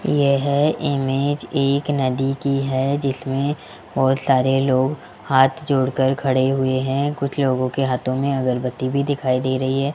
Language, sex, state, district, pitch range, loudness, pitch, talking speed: Hindi, male, Rajasthan, Jaipur, 130-140 Hz, -20 LUFS, 135 Hz, 155 wpm